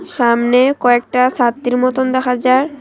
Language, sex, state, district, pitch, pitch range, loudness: Bengali, female, Assam, Hailakandi, 250 Hz, 245-260 Hz, -14 LUFS